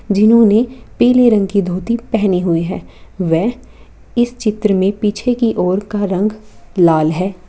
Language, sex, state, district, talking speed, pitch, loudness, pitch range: Hindi, female, Jharkhand, Sahebganj, 150 wpm, 210 Hz, -15 LUFS, 185-230 Hz